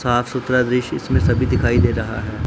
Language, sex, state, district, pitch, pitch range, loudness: Hindi, male, Punjab, Pathankot, 120 Hz, 110-125 Hz, -18 LUFS